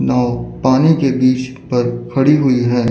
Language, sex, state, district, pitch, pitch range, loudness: Hindi, male, Chandigarh, Chandigarh, 130 Hz, 120-135 Hz, -15 LUFS